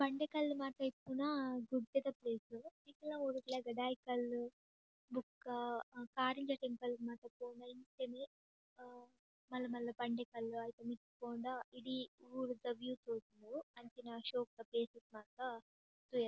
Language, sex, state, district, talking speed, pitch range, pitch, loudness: Tulu, female, Karnataka, Dakshina Kannada, 105 wpm, 235-260 Hz, 245 Hz, -44 LUFS